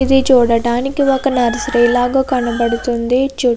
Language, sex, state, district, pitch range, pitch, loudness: Telugu, female, Andhra Pradesh, Krishna, 240-270 Hz, 250 Hz, -14 LUFS